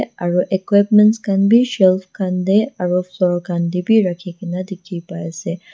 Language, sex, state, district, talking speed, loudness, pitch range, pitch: Nagamese, female, Nagaland, Dimapur, 145 wpm, -17 LUFS, 175-200 Hz, 185 Hz